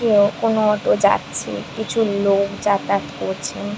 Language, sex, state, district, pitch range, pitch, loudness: Bengali, female, West Bengal, Dakshin Dinajpur, 200-215 Hz, 205 Hz, -19 LUFS